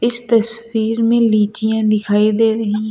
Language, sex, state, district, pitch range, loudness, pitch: Hindi, male, Uttar Pradesh, Lucknow, 215-230 Hz, -14 LUFS, 220 Hz